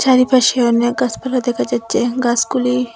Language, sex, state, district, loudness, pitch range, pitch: Bengali, female, Assam, Hailakandi, -16 LUFS, 240-255 Hz, 245 Hz